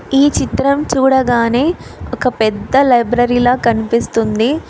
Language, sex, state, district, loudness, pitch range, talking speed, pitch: Telugu, female, Telangana, Hyderabad, -14 LUFS, 235-265 Hz, 100 wpm, 245 Hz